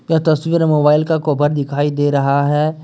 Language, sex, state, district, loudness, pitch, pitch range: Hindi, male, Jharkhand, Deoghar, -15 LUFS, 150 Hz, 145-155 Hz